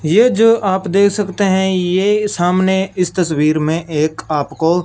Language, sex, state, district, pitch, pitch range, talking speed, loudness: Hindi, male, Punjab, Fazilka, 185 Hz, 160-200 Hz, 160 wpm, -15 LUFS